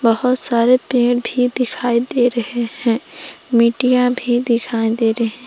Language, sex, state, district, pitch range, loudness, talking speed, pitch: Hindi, female, Jharkhand, Palamu, 235-250 Hz, -17 LUFS, 145 wpm, 240 Hz